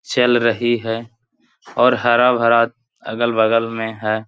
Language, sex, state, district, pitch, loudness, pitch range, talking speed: Hindi, male, Bihar, Jahanabad, 115 Hz, -17 LUFS, 115-120 Hz, 125 wpm